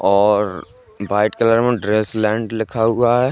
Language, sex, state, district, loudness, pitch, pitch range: Hindi, male, Uttar Pradesh, Jalaun, -17 LUFS, 110 Hz, 105-115 Hz